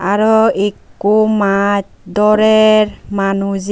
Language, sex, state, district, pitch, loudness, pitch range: Chakma, female, Tripura, Unakoti, 205 Hz, -13 LUFS, 200-215 Hz